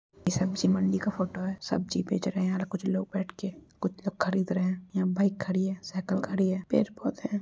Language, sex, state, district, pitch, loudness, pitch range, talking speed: Hindi, female, Uttar Pradesh, Deoria, 190 Hz, -30 LUFS, 185-195 Hz, 260 wpm